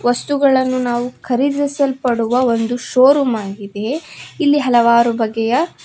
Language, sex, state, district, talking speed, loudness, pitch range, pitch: Kannada, female, Karnataka, Koppal, 105 wpm, -16 LUFS, 235-275 Hz, 245 Hz